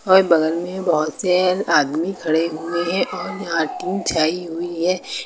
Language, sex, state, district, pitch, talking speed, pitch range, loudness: Hindi, female, Uttar Pradesh, Lucknow, 175 Hz, 170 wpm, 165-185 Hz, -20 LUFS